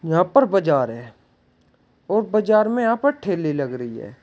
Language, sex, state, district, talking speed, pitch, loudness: Hindi, male, Uttar Pradesh, Shamli, 185 wpm, 175 Hz, -20 LUFS